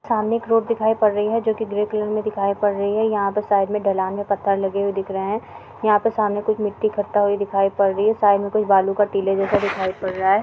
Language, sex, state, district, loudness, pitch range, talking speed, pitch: Hindi, female, Bihar, Sitamarhi, -20 LUFS, 195-215 Hz, 290 wpm, 205 Hz